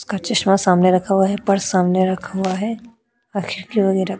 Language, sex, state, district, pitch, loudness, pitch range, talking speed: Hindi, female, Uttar Pradesh, Jalaun, 195 Hz, -18 LUFS, 185-210 Hz, 170 wpm